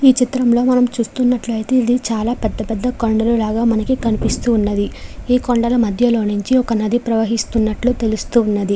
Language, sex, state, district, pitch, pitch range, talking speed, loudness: Telugu, female, Andhra Pradesh, Chittoor, 230 Hz, 220-245 Hz, 115 wpm, -17 LUFS